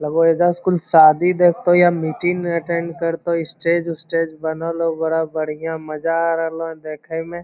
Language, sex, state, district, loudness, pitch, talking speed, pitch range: Magahi, male, Bihar, Lakhisarai, -18 LUFS, 165 Hz, 160 wpm, 160-170 Hz